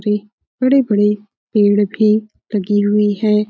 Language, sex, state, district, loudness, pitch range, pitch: Hindi, female, Uttar Pradesh, Etah, -16 LUFS, 205-215 Hz, 210 Hz